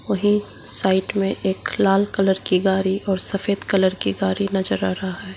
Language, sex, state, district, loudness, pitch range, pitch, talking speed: Hindi, female, Arunachal Pradesh, Lower Dibang Valley, -19 LUFS, 190-195 Hz, 190 Hz, 190 wpm